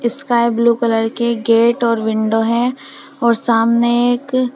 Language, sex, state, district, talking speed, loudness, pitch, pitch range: Hindi, female, Uttar Pradesh, Shamli, 155 wpm, -15 LUFS, 235 Hz, 230-240 Hz